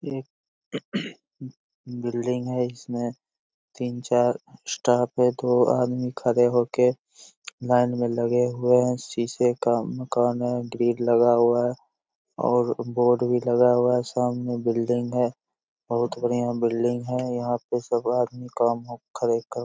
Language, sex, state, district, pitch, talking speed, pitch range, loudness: Hindi, male, Bihar, Begusarai, 120 Hz, 130 wpm, 120-125 Hz, -24 LUFS